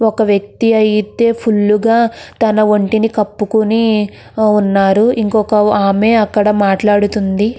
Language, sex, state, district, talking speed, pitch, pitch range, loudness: Telugu, female, Andhra Pradesh, Krishna, 105 wpm, 215 Hz, 205-220 Hz, -13 LUFS